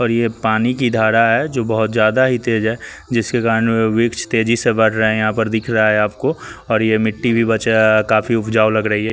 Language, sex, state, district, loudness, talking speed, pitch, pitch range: Hindi, male, Chandigarh, Chandigarh, -16 LUFS, 250 wpm, 110 Hz, 110-115 Hz